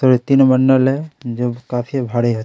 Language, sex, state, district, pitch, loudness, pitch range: Hindi, male, Chhattisgarh, Kabirdham, 130 Hz, -16 LUFS, 120-135 Hz